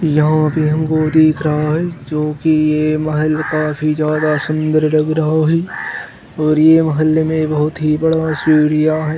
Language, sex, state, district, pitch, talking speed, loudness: Maithili, male, Bihar, Begusarai, 155 Hz, 165 wpm, -15 LUFS